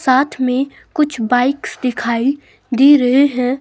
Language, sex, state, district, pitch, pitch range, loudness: Hindi, female, Himachal Pradesh, Shimla, 260 Hz, 250-280 Hz, -15 LUFS